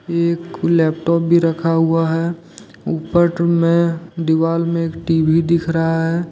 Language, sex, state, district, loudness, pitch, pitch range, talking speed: Hindi, male, Jharkhand, Deoghar, -17 LUFS, 165 Hz, 165-170 Hz, 135 wpm